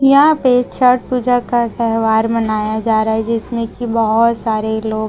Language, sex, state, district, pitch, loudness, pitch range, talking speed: Hindi, female, Chhattisgarh, Raipur, 230 Hz, -15 LUFS, 220-245 Hz, 165 wpm